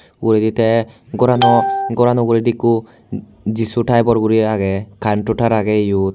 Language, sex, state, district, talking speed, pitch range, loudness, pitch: Chakma, male, Tripura, Unakoti, 115 wpm, 110-120 Hz, -16 LUFS, 115 Hz